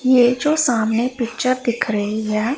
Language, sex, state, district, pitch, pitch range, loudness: Hindi, female, Punjab, Pathankot, 240 Hz, 220-255 Hz, -19 LUFS